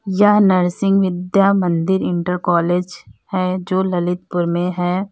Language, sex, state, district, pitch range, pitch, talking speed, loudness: Hindi, female, Uttar Pradesh, Lalitpur, 175-190 Hz, 180 Hz, 130 wpm, -17 LUFS